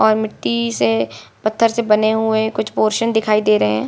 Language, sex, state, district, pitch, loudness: Hindi, female, Bihar, Saran, 215 Hz, -17 LUFS